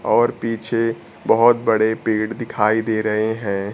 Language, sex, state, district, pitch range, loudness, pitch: Hindi, male, Bihar, Kaimur, 110-115 Hz, -19 LUFS, 110 Hz